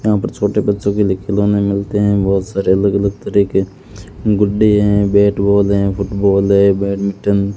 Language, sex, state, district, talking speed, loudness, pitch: Hindi, male, Rajasthan, Bikaner, 190 wpm, -15 LUFS, 100 Hz